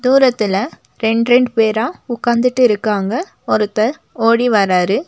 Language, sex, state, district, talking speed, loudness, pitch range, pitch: Tamil, female, Tamil Nadu, Nilgiris, 95 wpm, -15 LUFS, 210-250 Hz, 230 Hz